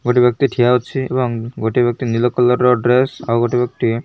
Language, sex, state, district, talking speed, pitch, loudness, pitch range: Odia, male, Odisha, Malkangiri, 220 wpm, 125 Hz, -16 LUFS, 120-125 Hz